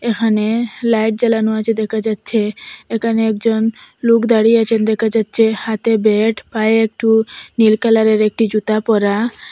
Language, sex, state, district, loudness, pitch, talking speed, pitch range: Bengali, female, Assam, Hailakandi, -15 LUFS, 220 Hz, 140 wpm, 220-225 Hz